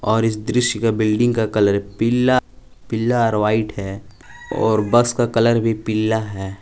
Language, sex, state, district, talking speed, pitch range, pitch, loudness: Hindi, male, Jharkhand, Palamu, 170 wpm, 105-115 Hz, 110 Hz, -18 LUFS